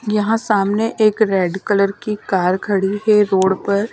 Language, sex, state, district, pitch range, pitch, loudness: Hindi, female, Himachal Pradesh, Shimla, 195-215 Hz, 205 Hz, -17 LUFS